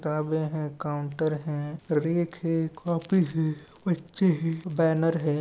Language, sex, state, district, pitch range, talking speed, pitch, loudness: Hindi, male, Jharkhand, Jamtara, 150-170 Hz, 145 wpm, 160 Hz, -28 LUFS